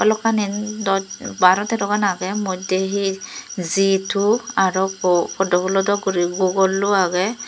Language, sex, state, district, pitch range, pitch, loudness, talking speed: Chakma, female, Tripura, Dhalai, 190-210 Hz, 195 Hz, -19 LUFS, 145 wpm